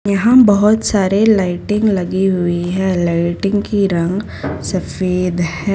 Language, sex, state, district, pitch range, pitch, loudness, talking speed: Hindi, female, Gujarat, Valsad, 175-205 Hz, 190 Hz, -15 LUFS, 125 wpm